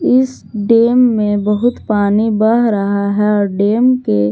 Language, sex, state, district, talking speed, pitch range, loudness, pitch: Hindi, female, Jharkhand, Garhwa, 140 wpm, 205-235 Hz, -13 LUFS, 210 Hz